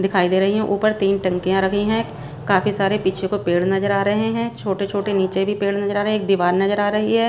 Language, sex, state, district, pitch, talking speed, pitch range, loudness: Hindi, female, Bihar, West Champaran, 200 Hz, 255 wpm, 190-205 Hz, -19 LUFS